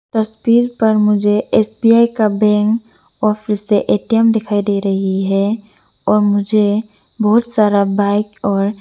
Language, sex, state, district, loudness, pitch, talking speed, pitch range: Hindi, female, Arunachal Pradesh, Lower Dibang Valley, -15 LUFS, 210 Hz, 145 wpm, 205-220 Hz